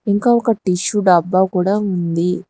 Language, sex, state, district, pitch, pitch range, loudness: Telugu, female, Telangana, Hyderabad, 185 Hz, 180-205 Hz, -16 LUFS